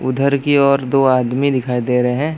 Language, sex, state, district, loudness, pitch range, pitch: Hindi, male, Chhattisgarh, Bastar, -15 LUFS, 125-140 Hz, 135 Hz